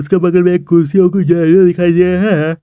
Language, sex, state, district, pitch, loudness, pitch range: Hindi, male, Jharkhand, Garhwa, 180 Hz, -11 LUFS, 170-185 Hz